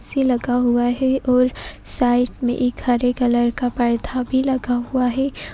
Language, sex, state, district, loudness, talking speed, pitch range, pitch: Hindi, female, Uttar Pradesh, Etah, -19 LUFS, 175 wpm, 245-255 Hz, 250 Hz